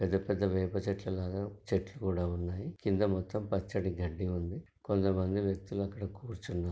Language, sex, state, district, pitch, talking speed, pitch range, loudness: Telugu, male, Telangana, Nalgonda, 95 Hz, 150 wpm, 95-100 Hz, -35 LUFS